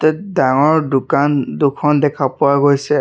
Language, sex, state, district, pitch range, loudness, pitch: Assamese, male, Assam, Sonitpur, 140-150 Hz, -15 LUFS, 145 Hz